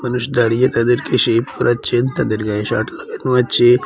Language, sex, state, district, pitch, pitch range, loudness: Bengali, male, Assam, Hailakandi, 120 Hz, 115-125 Hz, -16 LUFS